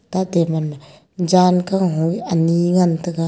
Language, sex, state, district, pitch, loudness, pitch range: Wancho, female, Arunachal Pradesh, Longding, 175 Hz, -17 LUFS, 165-185 Hz